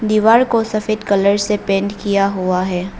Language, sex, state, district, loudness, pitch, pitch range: Hindi, female, Arunachal Pradesh, Lower Dibang Valley, -16 LUFS, 200 Hz, 195-215 Hz